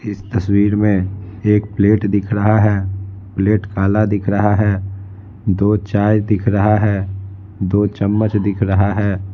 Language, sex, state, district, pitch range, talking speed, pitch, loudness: Hindi, male, Bihar, Patna, 95-105 Hz, 150 wpm, 100 Hz, -16 LUFS